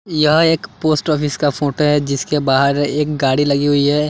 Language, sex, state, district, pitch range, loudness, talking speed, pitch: Hindi, male, Chandigarh, Chandigarh, 140-150 Hz, -16 LUFS, 205 wpm, 150 Hz